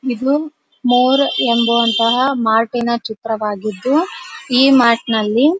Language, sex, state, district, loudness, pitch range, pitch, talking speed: Kannada, female, Karnataka, Dharwad, -15 LUFS, 230-270 Hz, 240 Hz, 85 wpm